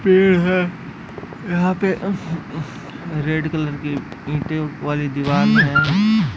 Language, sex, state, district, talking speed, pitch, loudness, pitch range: Hindi, male, Uttar Pradesh, Etah, 120 wpm, 160 Hz, -19 LUFS, 150-185 Hz